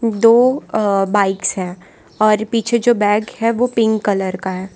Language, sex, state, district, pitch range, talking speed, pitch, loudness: Hindi, female, Gujarat, Valsad, 195-230 Hz, 175 wpm, 215 Hz, -16 LUFS